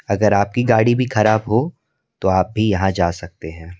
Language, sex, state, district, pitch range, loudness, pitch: Hindi, male, Delhi, New Delhi, 95-120 Hz, -17 LUFS, 105 Hz